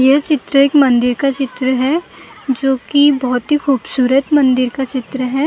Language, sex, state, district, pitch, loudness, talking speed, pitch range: Hindi, female, Maharashtra, Gondia, 270 Hz, -14 LUFS, 185 wpm, 255-285 Hz